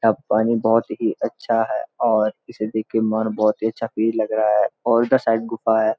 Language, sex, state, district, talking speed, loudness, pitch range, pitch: Hindi, male, Uttarakhand, Uttarkashi, 230 wpm, -20 LUFS, 110-115 Hz, 110 Hz